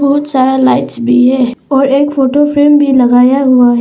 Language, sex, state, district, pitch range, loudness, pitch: Hindi, female, Arunachal Pradesh, Papum Pare, 250-280 Hz, -9 LUFS, 265 Hz